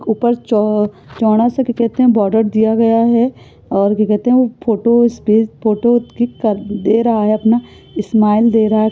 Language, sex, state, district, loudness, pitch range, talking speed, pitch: Hindi, female, Uttar Pradesh, Etah, -14 LUFS, 215-235 Hz, 180 wpm, 225 Hz